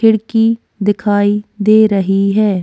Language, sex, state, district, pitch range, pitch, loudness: Hindi, female, Goa, North and South Goa, 200-220 Hz, 210 Hz, -13 LUFS